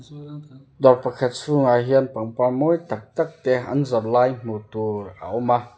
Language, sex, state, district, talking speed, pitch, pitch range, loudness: Mizo, male, Mizoram, Aizawl, 175 wpm, 125 Hz, 120-140 Hz, -21 LUFS